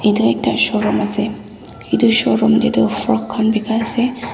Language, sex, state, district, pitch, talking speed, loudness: Nagamese, female, Nagaland, Dimapur, 220 Hz, 150 wpm, -16 LUFS